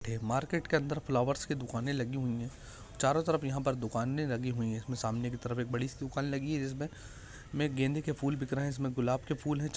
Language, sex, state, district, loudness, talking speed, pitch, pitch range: Hindi, male, Maharashtra, Pune, -34 LUFS, 240 wpm, 135 Hz, 120-145 Hz